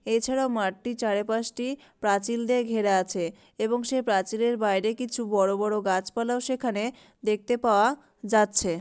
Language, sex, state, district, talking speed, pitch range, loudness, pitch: Bengali, female, West Bengal, Malda, 130 wpm, 200-240 Hz, -26 LUFS, 220 Hz